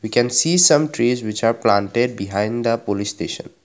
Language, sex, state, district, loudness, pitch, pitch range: English, male, Assam, Kamrup Metropolitan, -18 LUFS, 115 Hz, 105-125 Hz